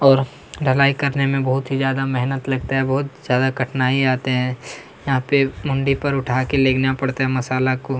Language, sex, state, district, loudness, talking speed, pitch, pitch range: Hindi, male, Chhattisgarh, Kabirdham, -19 LUFS, 195 wpm, 135 Hz, 130-135 Hz